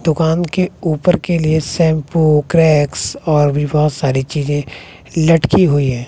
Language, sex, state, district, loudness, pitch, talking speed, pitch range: Hindi, male, Bihar, West Champaran, -14 LUFS, 155 Hz, 150 wpm, 145-165 Hz